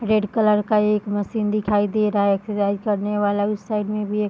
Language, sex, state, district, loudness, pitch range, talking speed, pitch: Hindi, female, Bihar, Bhagalpur, -21 LUFS, 205-215 Hz, 250 wpm, 210 Hz